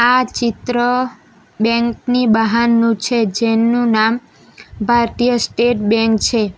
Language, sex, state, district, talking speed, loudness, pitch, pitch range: Gujarati, female, Gujarat, Valsad, 110 wpm, -15 LUFS, 235 Hz, 225-240 Hz